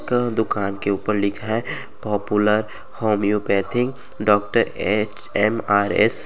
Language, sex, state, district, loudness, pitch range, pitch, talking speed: Bhojpuri, male, Uttar Pradesh, Gorakhpur, -21 LUFS, 100-110 Hz, 105 Hz, 95 wpm